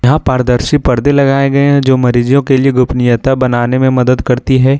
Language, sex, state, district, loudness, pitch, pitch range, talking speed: Hindi, male, Jharkhand, Ranchi, -11 LUFS, 130 Hz, 125-135 Hz, 200 wpm